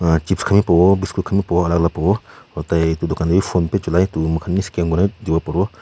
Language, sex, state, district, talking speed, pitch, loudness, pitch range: Nagamese, male, Nagaland, Kohima, 270 wpm, 85 Hz, -18 LUFS, 80-95 Hz